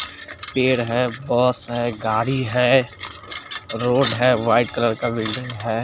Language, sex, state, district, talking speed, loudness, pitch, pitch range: Hindi, male, Chandigarh, Chandigarh, 135 wpm, -20 LUFS, 120 Hz, 115-125 Hz